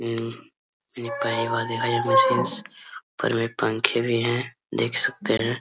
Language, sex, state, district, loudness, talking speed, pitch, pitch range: Hindi, male, Jharkhand, Sahebganj, -21 LUFS, 160 wpm, 115 Hz, 115-120 Hz